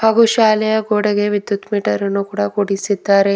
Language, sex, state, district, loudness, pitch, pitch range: Kannada, female, Karnataka, Bidar, -16 LUFS, 205 Hz, 200-215 Hz